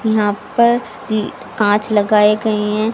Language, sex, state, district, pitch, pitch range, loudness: Hindi, female, Haryana, Rohtak, 215 Hz, 210-220 Hz, -16 LUFS